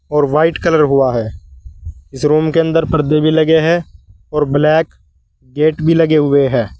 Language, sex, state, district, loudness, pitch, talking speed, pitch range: Hindi, male, Uttar Pradesh, Saharanpur, -13 LUFS, 150 Hz, 175 wpm, 120-160 Hz